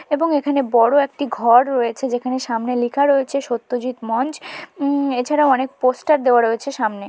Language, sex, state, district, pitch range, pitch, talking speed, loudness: Bengali, female, West Bengal, Dakshin Dinajpur, 240-280 Hz, 255 Hz, 160 wpm, -18 LUFS